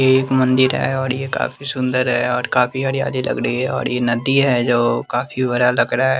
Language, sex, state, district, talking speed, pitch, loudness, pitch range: Hindi, male, Bihar, West Champaran, 240 wpm, 130 Hz, -18 LUFS, 125-130 Hz